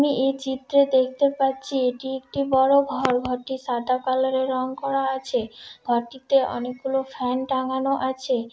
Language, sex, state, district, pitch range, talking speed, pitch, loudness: Bengali, female, West Bengal, Dakshin Dinajpur, 255-270 Hz, 155 wpm, 260 Hz, -23 LUFS